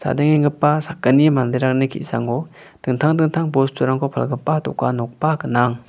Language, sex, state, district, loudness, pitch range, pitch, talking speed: Garo, male, Meghalaya, West Garo Hills, -19 LUFS, 125-155 Hz, 140 Hz, 100 wpm